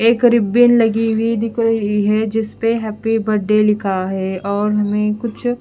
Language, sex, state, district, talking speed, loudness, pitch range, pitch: Hindi, female, Haryana, Charkhi Dadri, 170 wpm, -16 LUFS, 210-230 Hz, 220 Hz